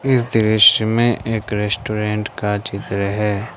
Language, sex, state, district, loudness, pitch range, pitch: Hindi, male, Jharkhand, Ranchi, -17 LUFS, 105-115 Hz, 105 Hz